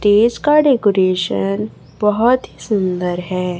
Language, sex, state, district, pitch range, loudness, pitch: Hindi, female, Chhattisgarh, Raipur, 175-225 Hz, -16 LUFS, 190 Hz